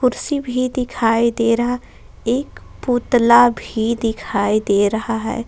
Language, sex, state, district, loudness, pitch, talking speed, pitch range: Hindi, female, Jharkhand, Palamu, -18 LUFS, 235 Hz, 130 wpm, 225-245 Hz